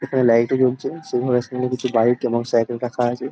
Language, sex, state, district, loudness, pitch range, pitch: Bengali, male, West Bengal, Dakshin Dinajpur, -20 LUFS, 120-130 Hz, 125 Hz